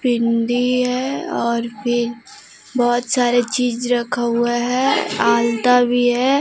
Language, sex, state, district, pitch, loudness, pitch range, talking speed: Hindi, female, Jharkhand, Deoghar, 245 Hz, -18 LUFS, 235-250 Hz, 120 wpm